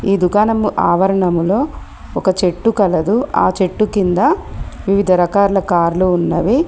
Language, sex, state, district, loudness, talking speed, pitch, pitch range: Telugu, female, Telangana, Komaram Bheem, -15 LUFS, 115 wpm, 190 Hz, 180-205 Hz